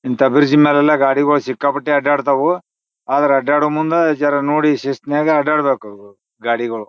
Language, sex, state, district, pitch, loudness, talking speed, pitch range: Kannada, male, Karnataka, Bijapur, 145 Hz, -15 LUFS, 140 wpm, 135-150 Hz